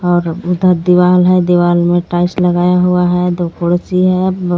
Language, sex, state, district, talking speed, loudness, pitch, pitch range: Hindi, female, Jharkhand, Garhwa, 195 wpm, -12 LUFS, 180 Hz, 175-180 Hz